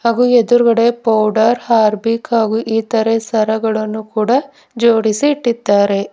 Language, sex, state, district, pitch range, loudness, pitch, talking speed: Kannada, female, Karnataka, Bidar, 220-235 Hz, -14 LUFS, 225 Hz, 100 wpm